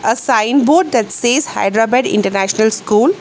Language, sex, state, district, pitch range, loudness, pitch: English, female, Telangana, Hyderabad, 215-270 Hz, -14 LUFS, 225 Hz